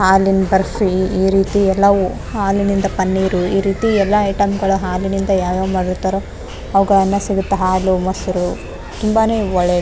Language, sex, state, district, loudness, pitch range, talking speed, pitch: Kannada, female, Karnataka, Raichur, -16 LUFS, 185-200 Hz, 145 wpm, 195 Hz